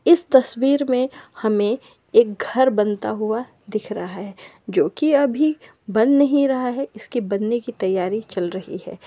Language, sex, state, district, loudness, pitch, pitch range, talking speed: Magahi, female, Bihar, Samastipur, -20 LUFS, 235 Hz, 210-270 Hz, 165 wpm